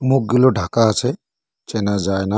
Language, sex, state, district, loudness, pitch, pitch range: Bengali, male, West Bengal, Cooch Behar, -18 LUFS, 110 Hz, 100-130 Hz